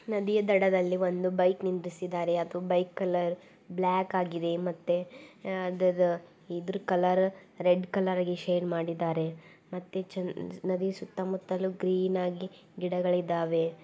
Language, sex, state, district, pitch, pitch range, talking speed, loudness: Kannada, female, Karnataka, Gulbarga, 180 Hz, 175-185 Hz, 120 wpm, -30 LUFS